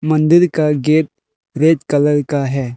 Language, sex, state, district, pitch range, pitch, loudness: Hindi, male, Arunachal Pradesh, Lower Dibang Valley, 145-160 Hz, 155 Hz, -14 LUFS